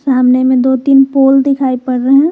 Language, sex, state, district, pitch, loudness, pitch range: Hindi, female, Jharkhand, Garhwa, 265 Hz, -10 LUFS, 255-275 Hz